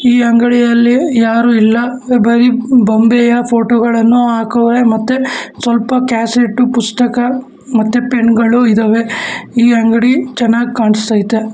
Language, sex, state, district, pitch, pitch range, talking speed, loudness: Kannada, male, Karnataka, Bangalore, 235 Hz, 230-245 Hz, 110 wpm, -11 LUFS